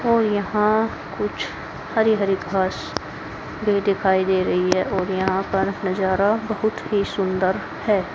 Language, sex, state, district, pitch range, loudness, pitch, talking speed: Hindi, female, Haryana, Jhajjar, 190-210 Hz, -22 LUFS, 195 Hz, 140 wpm